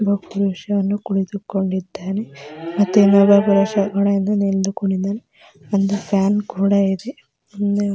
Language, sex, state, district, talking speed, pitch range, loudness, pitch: Kannada, female, Karnataka, Mysore, 85 wpm, 195-205 Hz, -18 LUFS, 200 Hz